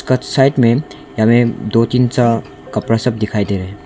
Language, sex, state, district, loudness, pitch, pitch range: Hindi, male, Arunachal Pradesh, Longding, -15 LUFS, 115 Hz, 105-125 Hz